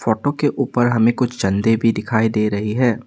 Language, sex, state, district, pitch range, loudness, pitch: Hindi, male, Assam, Sonitpur, 105-125 Hz, -18 LUFS, 115 Hz